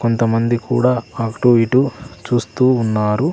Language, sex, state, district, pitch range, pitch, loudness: Telugu, male, Andhra Pradesh, Sri Satya Sai, 115-125 Hz, 120 Hz, -17 LUFS